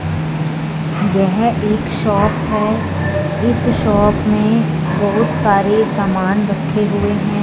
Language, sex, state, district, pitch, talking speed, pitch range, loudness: Hindi, female, Punjab, Fazilka, 200 Hz, 105 wpm, 165-210 Hz, -16 LUFS